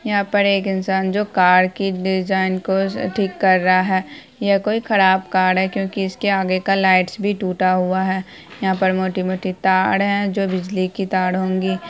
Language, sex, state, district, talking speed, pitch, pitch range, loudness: Hindi, female, Bihar, Araria, 190 wpm, 190 Hz, 185-195 Hz, -18 LUFS